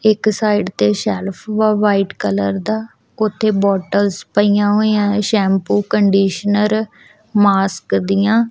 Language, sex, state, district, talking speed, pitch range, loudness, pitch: Punjabi, female, Punjab, Kapurthala, 115 wpm, 195-215 Hz, -16 LUFS, 205 Hz